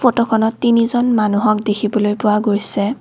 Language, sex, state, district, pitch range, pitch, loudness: Assamese, female, Assam, Kamrup Metropolitan, 210-235 Hz, 215 Hz, -16 LUFS